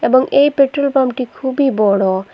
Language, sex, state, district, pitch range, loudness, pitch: Bengali, female, Assam, Hailakandi, 215-275 Hz, -14 LUFS, 260 Hz